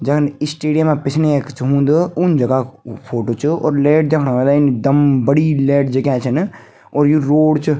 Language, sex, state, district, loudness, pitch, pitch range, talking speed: Garhwali, female, Uttarakhand, Tehri Garhwal, -15 LUFS, 145 Hz, 135-155 Hz, 200 wpm